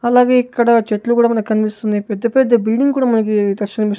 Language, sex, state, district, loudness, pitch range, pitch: Telugu, male, Andhra Pradesh, Sri Satya Sai, -15 LUFS, 215-240 Hz, 225 Hz